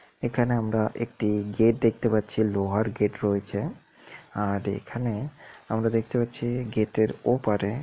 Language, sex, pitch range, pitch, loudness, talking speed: Odia, male, 105-120 Hz, 110 Hz, -26 LUFS, 130 wpm